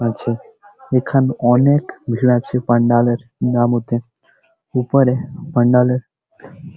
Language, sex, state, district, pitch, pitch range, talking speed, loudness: Bengali, male, West Bengal, Jhargram, 125 Hz, 120-130 Hz, 115 wpm, -17 LUFS